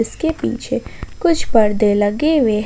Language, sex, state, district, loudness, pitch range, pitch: Hindi, female, Jharkhand, Ranchi, -17 LUFS, 210-315 Hz, 225 Hz